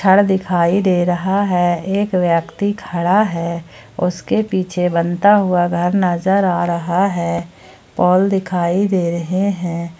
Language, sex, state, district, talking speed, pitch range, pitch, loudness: Hindi, female, Jharkhand, Ranchi, 130 wpm, 170-195 Hz, 180 Hz, -17 LUFS